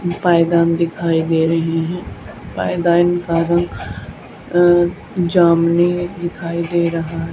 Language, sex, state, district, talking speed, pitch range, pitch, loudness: Hindi, female, Haryana, Charkhi Dadri, 115 wpm, 165-175 Hz, 170 Hz, -16 LUFS